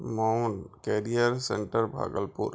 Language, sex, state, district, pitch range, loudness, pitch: Hindi, male, Bihar, Bhagalpur, 110-120 Hz, -29 LUFS, 115 Hz